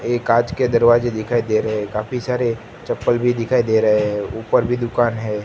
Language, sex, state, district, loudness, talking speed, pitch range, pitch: Hindi, male, Gujarat, Gandhinagar, -18 LUFS, 220 wpm, 110-120 Hz, 115 Hz